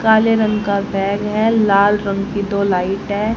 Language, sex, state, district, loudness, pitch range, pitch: Hindi, female, Haryana, Rohtak, -16 LUFS, 200-215 Hz, 205 Hz